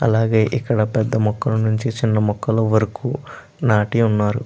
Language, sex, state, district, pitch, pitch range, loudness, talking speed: Telugu, male, Andhra Pradesh, Chittoor, 110 Hz, 105-115 Hz, -19 LUFS, 135 wpm